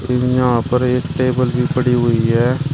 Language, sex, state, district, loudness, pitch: Hindi, male, Uttar Pradesh, Shamli, -16 LUFS, 125 Hz